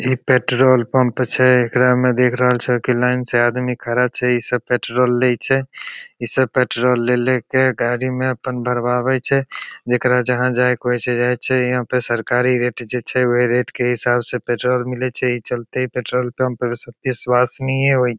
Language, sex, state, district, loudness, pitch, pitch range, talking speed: Maithili, male, Bihar, Begusarai, -18 LUFS, 125 Hz, 125-130 Hz, 200 wpm